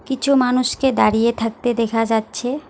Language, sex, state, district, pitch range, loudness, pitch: Bengali, female, West Bengal, Alipurduar, 225-265 Hz, -18 LUFS, 245 Hz